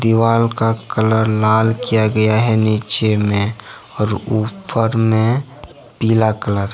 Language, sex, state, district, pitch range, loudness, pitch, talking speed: Hindi, male, Jharkhand, Ranchi, 110-115 Hz, -16 LUFS, 110 Hz, 135 wpm